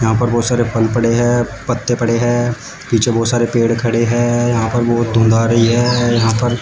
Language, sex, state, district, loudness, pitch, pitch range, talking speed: Hindi, male, Uttar Pradesh, Shamli, -15 LUFS, 120 Hz, 115-120 Hz, 235 wpm